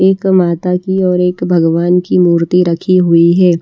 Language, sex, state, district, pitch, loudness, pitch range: Hindi, female, Haryana, Charkhi Dadri, 180 Hz, -11 LUFS, 170-185 Hz